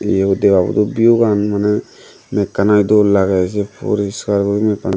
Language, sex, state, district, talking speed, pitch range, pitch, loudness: Chakma, male, Tripura, Dhalai, 195 wpm, 100-105 Hz, 105 Hz, -15 LUFS